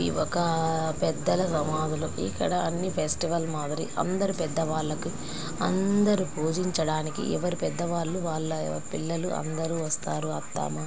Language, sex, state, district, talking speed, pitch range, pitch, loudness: Telugu, female, Andhra Pradesh, Anantapur, 110 wpm, 155-175 Hz, 160 Hz, -28 LUFS